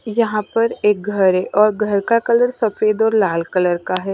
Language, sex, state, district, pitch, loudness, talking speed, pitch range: Hindi, female, Odisha, Nuapada, 210 Hz, -17 LUFS, 215 wpm, 195-225 Hz